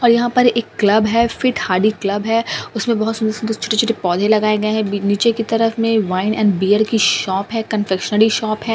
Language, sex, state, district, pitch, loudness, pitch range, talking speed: Hindi, female, Delhi, New Delhi, 220 Hz, -16 LUFS, 205-225 Hz, 220 wpm